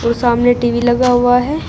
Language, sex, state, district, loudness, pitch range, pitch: Hindi, female, Uttar Pradesh, Shamli, -13 LUFS, 240-245 Hz, 245 Hz